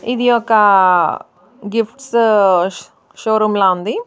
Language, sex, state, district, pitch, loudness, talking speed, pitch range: Telugu, female, Andhra Pradesh, Chittoor, 215 Hz, -14 LUFS, 105 wpm, 195-235 Hz